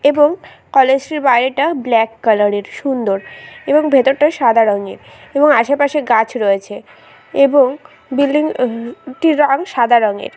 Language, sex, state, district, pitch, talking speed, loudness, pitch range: Bengali, female, West Bengal, Dakshin Dinajpur, 265 Hz, 140 wpm, -14 LUFS, 225-290 Hz